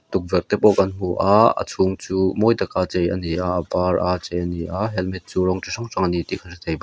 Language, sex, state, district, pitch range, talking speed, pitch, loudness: Mizo, male, Mizoram, Aizawl, 90-95 Hz, 265 wpm, 90 Hz, -21 LUFS